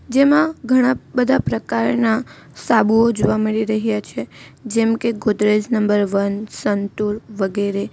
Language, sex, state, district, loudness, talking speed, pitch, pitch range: Gujarati, female, Gujarat, Valsad, -18 LUFS, 115 wpm, 215 Hz, 200-235 Hz